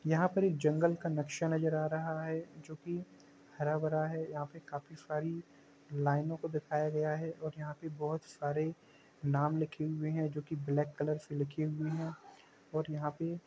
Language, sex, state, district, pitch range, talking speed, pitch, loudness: Hindi, male, Chhattisgarh, Rajnandgaon, 150-160 Hz, 185 wpm, 155 Hz, -36 LUFS